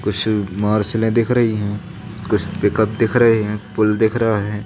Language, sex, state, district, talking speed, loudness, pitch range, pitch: Hindi, male, Madhya Pradesh, Katni, 180 wpm, -18 LUFS, 105-115 Hz, 110 Hz